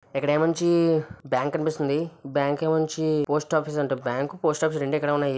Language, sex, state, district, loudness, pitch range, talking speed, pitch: Telugu, male, Andhra Pradesh, Visakhapatnam, -25 LUFS, 140-160 Hz, 65 wpm, 150 Hz